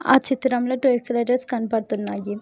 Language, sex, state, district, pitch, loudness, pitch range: Telugu, female, Telangana, Hyderabad, 245 Hz, -22 LUFS, 225-260 Hz